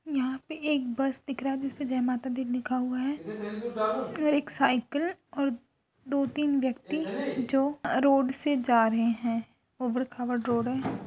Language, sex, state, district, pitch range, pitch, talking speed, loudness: Hindi, female, Uttar Pradesh, Etah, 245-280 Hz, 265 Hz, 160 wpm, -29 LUFS